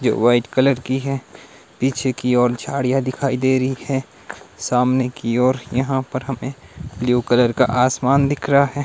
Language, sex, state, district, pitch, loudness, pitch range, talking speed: Hindi, male, Himachal Pradesh, Shimla, 130 Hz, -19 LUFS, 125-135 Hz, 170 wpm